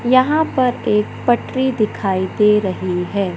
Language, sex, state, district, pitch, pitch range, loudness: Hindi, male, Madhya Pradesh, Katni, 210 Hz, 190-255 Hz, -17 LUFS